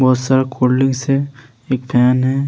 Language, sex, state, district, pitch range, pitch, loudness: Hindi, male, Uttar Pradesh, Hamirpur, 125-135 Hz, 130 Hz, -16 LUFS